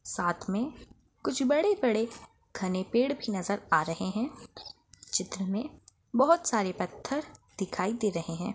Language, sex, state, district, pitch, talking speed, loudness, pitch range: Hindi, female, Chhattisgarh, Balrampur, 215 Hz, 140 wpm, -30 LUFS, 190-245 Hz